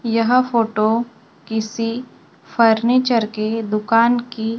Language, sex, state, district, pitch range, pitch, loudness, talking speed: Hindi, female, Maharashtra, Gondia, 220-235 Hz, 230 Hz, -18 LUFS, 90 wpm